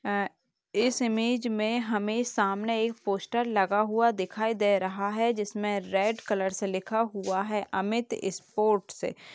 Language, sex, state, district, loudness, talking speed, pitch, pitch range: Hindi, female, Uttar Pradesh, Gorakhpur, -28 LUFS, 160 wpm, 210 Hz, 195-225 Hz